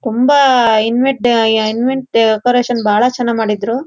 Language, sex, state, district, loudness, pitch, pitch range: Kannada, female, Karnataka, Shimoga, -13 LUFS, 235 Hz, 220-250 Hz